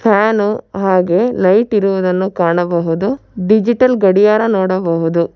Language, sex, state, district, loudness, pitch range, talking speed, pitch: Kannada, female, Karnataka, Bangalore, -14 LUFS, 180-215 Hz, 90 wpm, 195 Hz